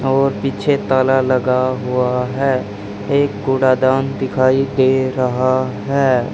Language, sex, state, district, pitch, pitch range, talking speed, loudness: Hindi, male, Haryana, Charkhi Dadri, 130 Hz, 125-135 Hz, 125 wpm, -16 LUFS